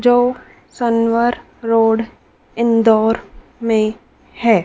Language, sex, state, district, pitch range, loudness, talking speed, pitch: Hindi, female, Madhya Pradesh, Dhar, 225-240 Hz, -16 LUFS, 75 wpm, 230 Hz